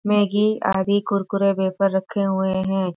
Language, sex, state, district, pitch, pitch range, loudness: Hindi, female, Bihar, Sitamarhi, 195 Hz, 190-205 Hz, -21 LUFS